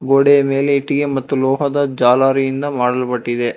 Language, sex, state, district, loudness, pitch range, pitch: Kannada, male, Karnataka, Bangalore, -16 LUFS, 125-140 Hz, 135 Hz